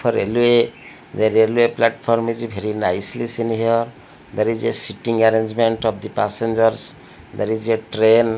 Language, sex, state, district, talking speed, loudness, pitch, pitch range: English, male, Odisha, Malkangiri, 155 wpm, -19 LUFS, 115 Hz, 110-115 Hz